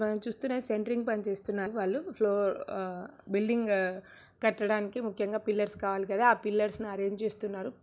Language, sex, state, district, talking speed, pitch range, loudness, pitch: Telugu, female, Andhra Pradesh, Krishna, 145 wpm, 200-220 Hz, -31 LUFS, 210 Hz